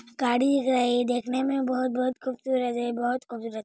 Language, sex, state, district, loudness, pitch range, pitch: Hindi, female, Andhra Pradesh, Anantapur, -26 LUFS, 245-260 Hz, 250 Hz